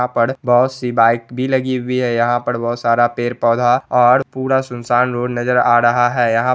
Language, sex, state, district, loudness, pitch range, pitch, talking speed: Hindi, male, Bihar, Gopalganj, -16 LUFS, 120-125 Hz, 120 Hz, 210 wpm